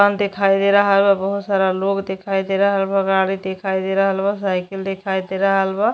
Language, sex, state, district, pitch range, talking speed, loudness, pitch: Bhojpuri, female, Uttar Pradesh, Deoria, 190-200 Hz, 220 wpm, -18 LUFS, 195 Hz